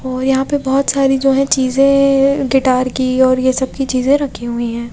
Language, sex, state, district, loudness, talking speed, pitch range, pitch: Hindi, female, Odisha, Nuapada, -14 LUFS, 220 wpm, 255-275 Hz, 265 Hz